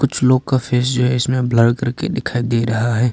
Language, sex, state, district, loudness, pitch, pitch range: Hindi, male, Arunachal Pradesh, Papum Pare, -17 LUFS, 125 Hz, 120-130 Hz